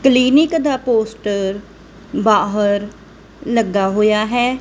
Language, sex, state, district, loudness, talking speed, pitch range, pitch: Punjabi, female, Punjab, Kapurthala, -16 LUFS, 90 wpm, 205-255 Hz, 220 Hz